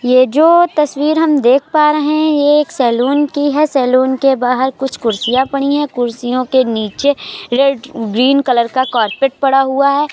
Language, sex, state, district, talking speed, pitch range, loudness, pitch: Hindi, female, Uttar Pradesh, Jalaun, 185 wpm, 250-290 Hz, -13 LUFS, 270 Hz